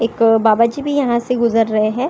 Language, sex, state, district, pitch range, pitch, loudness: Hindi, female, Maharashtra, Chandrapur, 225-250 Hz, 230 Hz, -15 LUFS